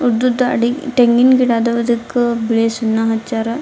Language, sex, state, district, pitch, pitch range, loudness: Kannada, female, Karnataka, Dharwad, 235 Hz, 225-250 Hz, -15 LUFS